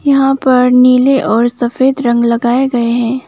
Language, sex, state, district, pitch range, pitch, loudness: Hindi, female, West Bengal, Alipurduar, 240-265 Hz, 250 Hz, -11 LUFS